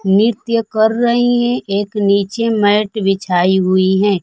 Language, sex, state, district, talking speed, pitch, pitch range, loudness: Hindi, female, Bihar, Kaimur, 140 wpm, 205 Hz, 195-230 Hz, -14 LUFS